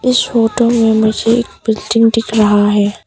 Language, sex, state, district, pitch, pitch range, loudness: Hindi, female, Arunachal Pradesh, Papum Pare, 225 Hz, 215-230 Hz, -12 LUFS